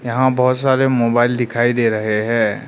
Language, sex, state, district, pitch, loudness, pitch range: Hindi, male, Arunachal Pradesh, Lower Dibang Valley, 120 Hz, -16 LUFS, 115-130 Hz